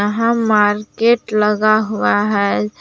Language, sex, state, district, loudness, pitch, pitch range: Hindi, female, Jharkhand, Palamu, -15 LUFS, 210 Hz, 205-220 Hz